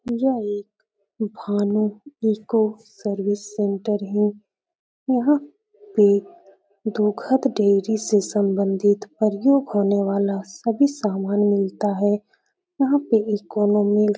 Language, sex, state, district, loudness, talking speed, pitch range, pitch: Hindi, female, Uttar Pradesh, Etah, -21 LUFS, 95 wpm, 205-230 Hz, 210 Hz